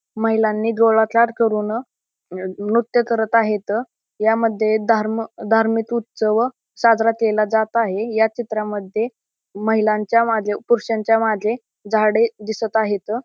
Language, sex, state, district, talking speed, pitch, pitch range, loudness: Marathi, male, Maharashtra, Pune, 110 wpm, 220 Hz, 215-230 Hz, -19 LUFS